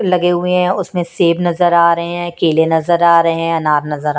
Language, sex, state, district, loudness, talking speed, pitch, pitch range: Hindi, female, Punjab, Kapurthala, -14 LUFS, 245 wpm, 170 Hz, 165-175 Hz